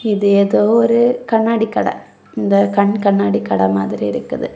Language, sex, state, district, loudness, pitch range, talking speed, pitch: Tamil, female, Tamil Nadu, Kanyakumari, -15 LUFS, 200-225 Hz, 145 wpm, 205 Hz